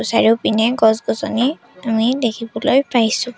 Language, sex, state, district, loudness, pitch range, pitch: Assamese, female, Assam, Sonitpur, -17 LUFS, 225-250 Hz, 230 Hz